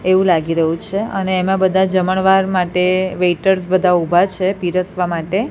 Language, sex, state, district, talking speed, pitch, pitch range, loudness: Gujarati, female, Gujarat, Gandhinagar, 165 wpm, 185 Hz, 180-190 Hz, -16 LUFS